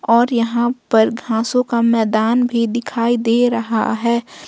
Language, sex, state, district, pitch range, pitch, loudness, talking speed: Hindi, female, Jharkhand, Ranchi, 230-240 Hz, 235 Hz, -17 LUFS, 150 wpm